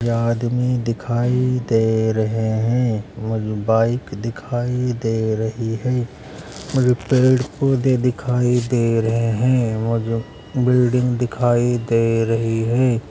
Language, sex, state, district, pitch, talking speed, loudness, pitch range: Hindi, male, Uttar Pradesh, Hamirpur, 120 Hz, 110 wpm, -19 LUFS, 115-125 Hz